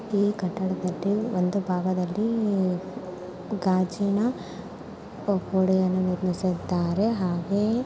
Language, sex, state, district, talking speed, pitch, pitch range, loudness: Kannada, female, Karnataka, Mysore, 60 wpm, 190 Hz, 180-205 Hz, -26 LUFS